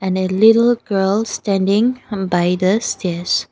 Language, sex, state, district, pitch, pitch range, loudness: English, female, Nagaland, Dimapur, 195 Hz, 185-220 Hz, -16 LUFS